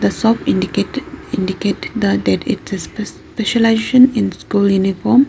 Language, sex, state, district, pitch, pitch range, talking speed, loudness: English, female, Arunachal Pradesh, Lower Dibang Valley, 215 Hz, 190-240 Hz, 145 wpm, -16 LUFS